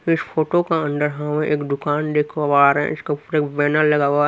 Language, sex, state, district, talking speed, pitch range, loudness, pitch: Hindi, male, Haryana, Rohtak, 250 wpm, 145-155 Hz, -19 LUFS, 150 Hz